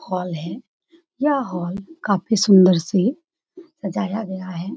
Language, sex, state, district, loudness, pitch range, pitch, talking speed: Hindi, female, Bihar, Saran, -20 LUFS, 185-280 Hz, 200 Hz, 125 wpm